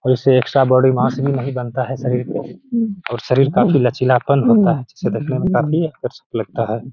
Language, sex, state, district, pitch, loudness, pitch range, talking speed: Hindi, male, Bihar, Gaya, 130 Hz, -17 LUFS, 125-150 Hz, 215 wpm